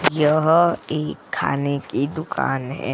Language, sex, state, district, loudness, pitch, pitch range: Hindi, female, Goa, North and South Goa, -21 LUFS, 150 Hz, 140-155 Hz